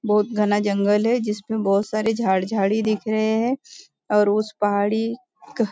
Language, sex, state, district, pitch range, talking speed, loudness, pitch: Hindi, female, Maharashtra, Nagpur, 205-225 Hz, 180 wpm, -21 LUFS, 215 Hz